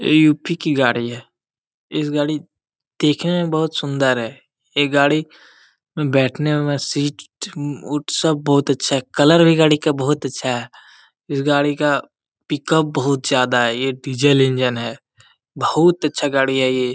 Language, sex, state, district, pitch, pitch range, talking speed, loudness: Hindi, male, Jharkhand, Jamtara, 145 Hz, 135-150 Hz, 150 wpm, -18 LUFS